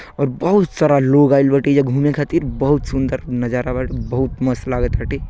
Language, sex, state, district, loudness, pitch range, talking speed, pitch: Bhojpuri, male, Uttar Pradesh, Gorakhpur, -17 LUFS, 125-145 Hz, 170 wpm, 135 Hz